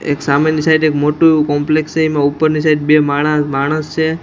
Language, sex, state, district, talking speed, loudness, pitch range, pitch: Gujarati, male, Gujarat, Gandhinagar, 215 wpm, -13 LUFS, 145-155 Hz, 155 Hz